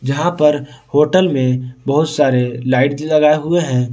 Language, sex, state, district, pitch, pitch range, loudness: Hindi, male, Jharkhand, Ranchi, 145 Hz, 130-155 Hz, -15 LUFS